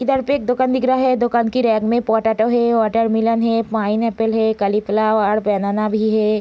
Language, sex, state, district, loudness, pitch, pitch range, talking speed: Hindi, female, Bihar, Gopalganj, -17 LUFS, 225 Hz, 215-240 Hz, 225 wpm